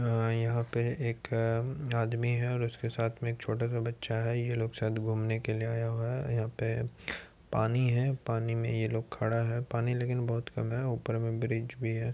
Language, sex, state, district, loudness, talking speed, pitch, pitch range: Hindi, male, Bihar, Supaul, -32 LUFS, 215 wpm, 115 Hz, 115-120 Hz